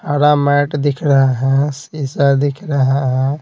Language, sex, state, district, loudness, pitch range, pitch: Hindi, male, Bihar, Patna, -15 LUFS, 135-145 Hz, 140 Hz